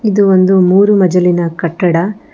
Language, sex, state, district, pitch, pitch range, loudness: Kannada, female, Karnataka, Bangalore, 185 Hz, 175-200 Hz, -11 LUFS